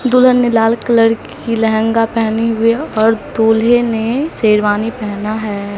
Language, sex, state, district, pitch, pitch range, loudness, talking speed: Hindi, female, Bihar, Katihar, 225 Hz, 220-235 Hz, -14 LUFS, 145 wpm